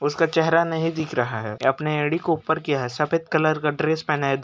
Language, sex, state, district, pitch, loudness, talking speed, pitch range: Hindi, male, Uttar Pradesh, Hamirpur, 155 Hz, -23 LUFS, 245 wpm, 145-160 Hz